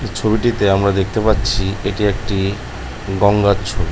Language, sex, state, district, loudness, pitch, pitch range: Bengali, male, West Bengal, North 24 Parganas, -17 LUFS, 100 Hz, 95-110 Hz